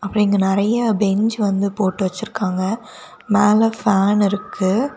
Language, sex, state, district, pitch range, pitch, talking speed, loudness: Tamil, female, Tamil Nadu, Kanyakumari, 195-215 Hz, 205 Hz, 110 wpm, -18 LUFS